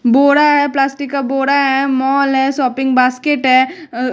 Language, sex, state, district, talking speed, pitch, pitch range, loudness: Hindi, female, Bihar, West Champaran, 175 wpm, 270 Hz, 260-280 Hz, -13 LUFS